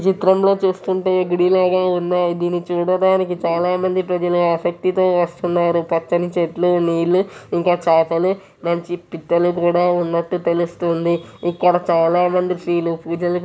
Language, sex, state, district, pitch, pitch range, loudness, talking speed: Telugu, male, Telangana, Nalgonda, 175 Hz, 170-180 Hz, -18 LUFS, 120 wpm